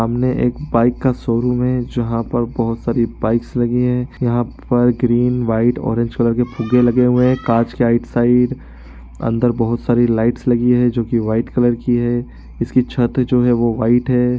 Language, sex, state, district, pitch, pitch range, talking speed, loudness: Hindi, male, Bihar, East Champaran, 120 Hz, 115-125 Hz, 195 wpm, -17 LUFS